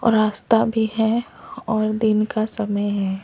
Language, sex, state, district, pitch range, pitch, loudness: Hindi, male, Delhi, New Delhi, 215-225 Hz, 220 Hz, -20 LUFS